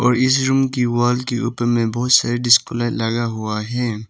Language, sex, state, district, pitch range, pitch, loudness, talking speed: Hindi, male, Arunachal Pradesh, Papum Pare, 115-125 Hz, 120 Hz, -18 LUFS, 220 wpm